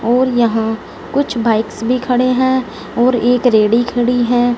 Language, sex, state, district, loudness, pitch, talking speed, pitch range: Hindi, female, Punjab, Fazilka, -15 LUFS, 245 Hz, 155 wpm, 225-250 Hz